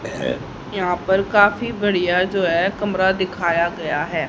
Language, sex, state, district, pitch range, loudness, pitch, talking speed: Hindi, male, Haryana, Rohtak, 175-200 Hz, -19 LUFS, 190 Hz, 140 wpm